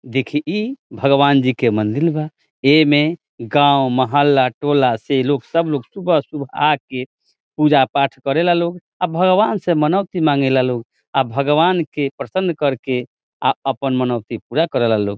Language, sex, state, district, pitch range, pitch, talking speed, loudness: Bhojpuri, male, Bihar, Saran, 130-160 Hz, 140 Hz, 140 wpm, -17 LUFS